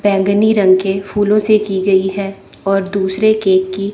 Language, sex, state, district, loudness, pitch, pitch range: Hindi, female, Chandigarh, Chandigarh, -14 LUFS, 195 Hz, 190-205 Hz